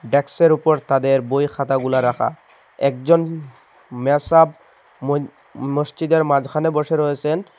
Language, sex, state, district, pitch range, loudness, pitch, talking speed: Bengali, male, Assam, Hailakandi, 135-160 Hz, -18 LUFS, 145 Hz, 95 wpm